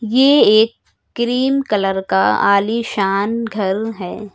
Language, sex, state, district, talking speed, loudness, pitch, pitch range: Hindi, male, Uttar Pradesh, Lucknow, 110 wpm, -16 LUFS, 220 Hz, 200-235 Hz